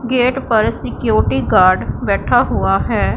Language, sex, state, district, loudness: Hindi, female, Punjab, Pathankot, -15 LUFS